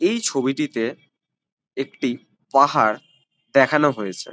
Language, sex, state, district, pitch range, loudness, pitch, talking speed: Bengali, male, West Bengal, Kolkata, 125-150 Hz, -21 LUFS, 135 Hz, 85 wpm